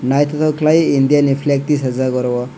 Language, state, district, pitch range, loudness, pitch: Kokborok, Tripura, West Tripura, 130-150 Hz, -15 LUFS, 140 Hz